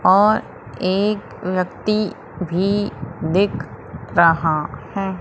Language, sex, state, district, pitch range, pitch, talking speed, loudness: Hindi, female, Madhya Pradesh, Umaria, 165-200 Hz, 185 Hz, 80 wpm, -20 LUFS